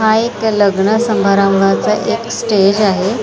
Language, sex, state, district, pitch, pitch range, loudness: Marathi, female, Maharashtra, Mumbai Suburban, 210 Hz, 195-225 Hz, -13 LUFS